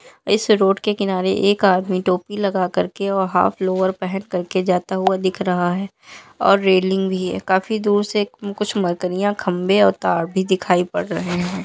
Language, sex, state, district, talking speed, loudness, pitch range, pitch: Hindi, female, Bihar, Madhepura, 190 wpm, -19 LUFS, 185-200 Hz, 190 Hz